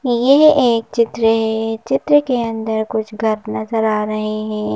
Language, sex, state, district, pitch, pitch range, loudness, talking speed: Hindi, female, Madhya Pradesh, Bhopal, 225 Hz, 215-235 Hz, -16 LUFS, 165 wpm